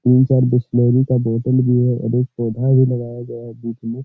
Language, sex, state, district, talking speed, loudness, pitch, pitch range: Hindi, male, Uttar Pradesh, Etah, 235 wpm, -17 LUFS, 125 Hz, 120-125 Hz